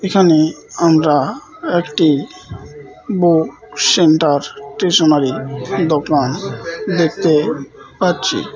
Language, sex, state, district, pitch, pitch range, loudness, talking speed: Bengali, male, West Bengal, Malda, 160 Hz, 145-180 Hz, -15 LUFS, 65 wpm